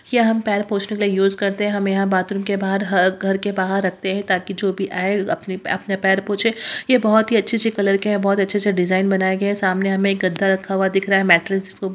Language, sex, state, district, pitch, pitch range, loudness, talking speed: Hindi, female, Bihar, Purnia, 195 Hz, 190-205 Hz, -19 LUFS, 270 wpm